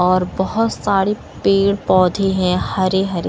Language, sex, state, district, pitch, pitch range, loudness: Hindi, female, Punjab, Kapurthala, 190 Hz, 185-200 Hz, -17 LUFS